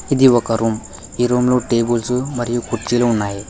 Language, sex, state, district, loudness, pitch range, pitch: Telugu, male, Telangana, Hyderabad, -17 LUFS, 115-125 Hz, 120 Hz